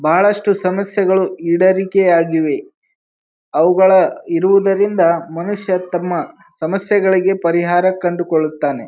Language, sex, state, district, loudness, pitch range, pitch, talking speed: Kannada, male, Karnataka, Bijapur, -15 LUFS, 170-195 Hz, 185 Hz, 80 wpm